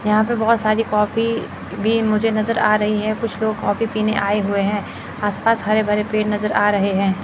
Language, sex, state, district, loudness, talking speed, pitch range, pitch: Hindi, male, Chandigarh, Chandigarh, -19 LUFS, 215 wpm, 205-220 Hz, 215 Hz